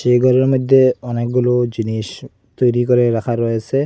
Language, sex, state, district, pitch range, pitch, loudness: Bengali, male, Assam, Hailakandi, 115-130 Hz, 125 Hz, -16 LUFS